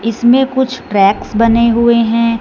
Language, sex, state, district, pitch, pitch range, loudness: Hindi, female, Punjab, Fazilka, 230 Hz, 230-240 Hz, -12 LUFS